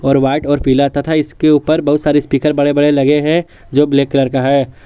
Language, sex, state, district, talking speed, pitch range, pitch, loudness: Hindi, male, Jharkhand, Garhwa, 235 wpm, 135-150 Hz, 145 Hz, -13 LUFS